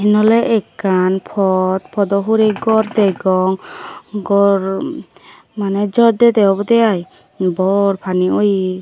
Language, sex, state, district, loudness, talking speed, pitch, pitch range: Chakma, female, Tripura, Dhalai, -15 LUFS, 110 wpm, 200 Hz, 190-215 Hz